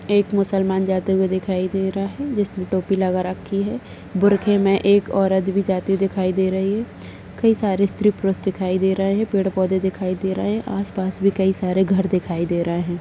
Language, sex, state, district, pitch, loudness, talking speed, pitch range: Hindi, female, Maharashtra, Aurangabad, 190 Hz, -20 LUFS, 210 wpm, 190-200 Hz